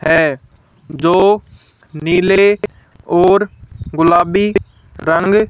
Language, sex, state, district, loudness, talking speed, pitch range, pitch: Hindi, female, Haryana, Charkhi Dadri, -13 LUFS, 65 wpm, 140-195 Hz, 170 Hz